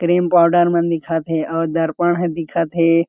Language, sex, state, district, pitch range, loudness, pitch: Chhattisgarhi, male, Chhattisgarh, Jashpur, 165-175 Hz, -17 LUFS, 170 Hz